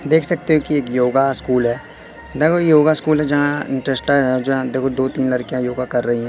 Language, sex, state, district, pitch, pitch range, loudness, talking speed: Hindi, male, Madhya Pradesh, Katni, 135 Hz, 130-155 Hz, -17 LUFS, 220 wpm